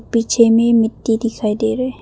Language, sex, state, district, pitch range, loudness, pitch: Hindi, female, Arunachal Pradesh, Papum Pare, 225-235 Hz, -15 LUFS, 230 Hz